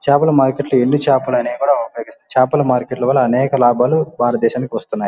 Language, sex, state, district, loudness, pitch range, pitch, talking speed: Telugu, male, Andhra Pradesh, Guntur, -15 LUFS, 125-140 Hz, 130 Hz, 175 wpm